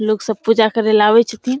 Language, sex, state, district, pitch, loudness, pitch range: Maithili, female, Bihar, Samastipur, 220 Hz, -14 LUFS, 215-225 Hz